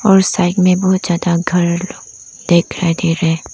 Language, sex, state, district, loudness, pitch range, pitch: Hindi, female, Arunachal Pradesh, Lower Dibang Valley, -14 LUFS, 170-185 Hz, 175 Hz